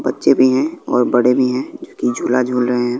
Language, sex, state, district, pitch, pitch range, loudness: Hindi, male, Bihar, West Champaran, 125 Hz, 125-130 Hz, -16 LUFS